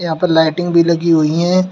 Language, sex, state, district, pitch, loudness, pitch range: Hindi, male, Uttar Pradesh, Shamli, 170 Hz, -13 LUFS, 160-175 Hz